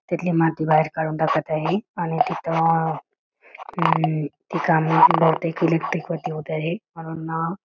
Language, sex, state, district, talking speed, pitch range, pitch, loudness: Marathi, female, Karnataka, Belgaum, 120 wpm, 160-170 Hz, 165 Hz, -22 LUFS